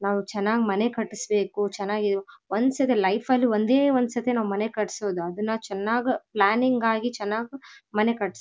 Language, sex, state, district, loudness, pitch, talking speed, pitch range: Kannada, female, Karnataka, Bellary, -25 LUFS, 220 Hz, 135 wpm, 200-235 Hz